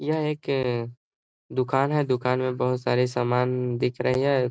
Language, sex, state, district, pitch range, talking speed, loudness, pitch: Hindi, male, Bihar, Gaya, 125-135 Hz, 160 wpm, -25 LUFS, 125 Hz